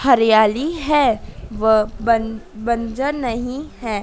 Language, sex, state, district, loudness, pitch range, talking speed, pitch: Hindi, female, Madhya Pradesh, Dhar, -18 LUFS, 220-265 Hz, 105 wpm, 230 Hz